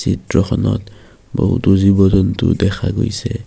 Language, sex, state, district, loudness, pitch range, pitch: Assamese, male, Assam, Kamrup Metropolitan, -15 LUFS, 95-115 Hz, 100 Hz